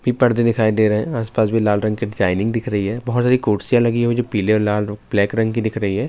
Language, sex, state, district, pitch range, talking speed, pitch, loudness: Urdu, male, Bihar, Saharsa, 105-120 Hz, 305 wpm, 110 Hz, -18 LUFS